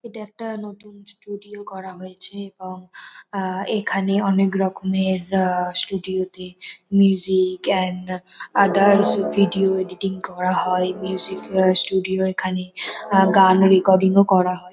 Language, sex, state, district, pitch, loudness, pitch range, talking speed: Bengali, female, West Bengal, North 24 Parganas, 190 Hz, -19 LUFS, 185-200 Hz, 120 wpm